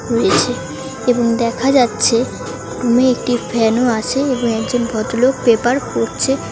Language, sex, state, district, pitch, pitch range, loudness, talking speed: Bengali, female, West Bengal, Paschim Medinipur, 235 Hz, 225-250 Hz, -16 LUFS, 120 wpm